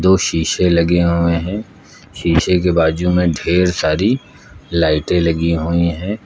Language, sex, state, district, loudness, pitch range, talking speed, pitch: Hindi, male, Uttar Pradesh, Lucknow, -16 LUFS, 85-90 Hz, 145 wpm, 85 Hz